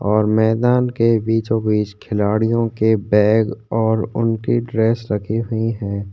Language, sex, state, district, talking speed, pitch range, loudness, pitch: Hindi, male, Chhattisgarh, Korba, 135 wpm, 105-115 Hz, -18 LUFS, 110 Hz